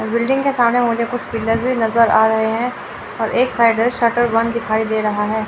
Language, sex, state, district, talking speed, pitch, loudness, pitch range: Hindi, female, Chandigarh, Chandigarh, 230 wpm, 230 Hz, -17 LUFS, 220-240 Hz